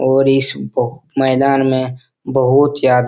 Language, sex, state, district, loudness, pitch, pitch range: Hindi, male, Bihar, Supaul, -15 LUFS, 135 Hz, 130-135 Hz